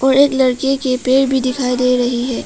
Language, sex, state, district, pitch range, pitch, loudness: Hindi, female, Arunachal Pradesh, Papum Pare, 250-270 Hz, 255 Hz, -15 LUFS